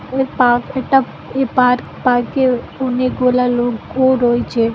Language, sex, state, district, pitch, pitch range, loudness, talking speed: Bengali, female, West Bengal, Malda, 250 Hz, 245-260 Hz, -16 LUFS, 125 wpm